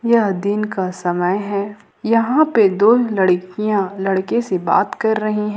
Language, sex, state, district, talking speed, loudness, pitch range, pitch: Hindi, female, Jharkhand, Ranchi, 160 wpm, -17 LUFS, 190-220 Hz, 205 Hz